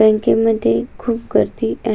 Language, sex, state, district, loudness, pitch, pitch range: Marathi, female, Maharashtra, Sindhudurg, -17 LUFS, 220 Hz, 215-230 Hz